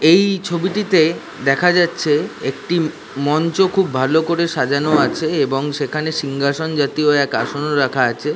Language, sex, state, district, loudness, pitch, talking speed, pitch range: Bengali, male, West Bengal, Dakshin Dinajpur, -17 LUFS, 155 Hz, 145 wpm, 140-170 Hz